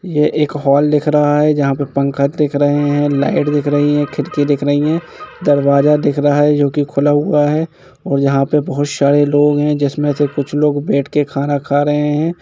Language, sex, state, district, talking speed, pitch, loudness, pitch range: Hindi, male, Jharkhand, Jamtara, 220 wpm, 145 Hz, -14 LUFS, 145-150 Hz